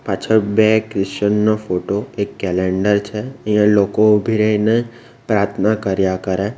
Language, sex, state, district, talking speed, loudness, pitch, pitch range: Gujarati, male, Gujarat, Valsad, 135 wpm, -17 LUFS, 105 Hz, 100-110 Hz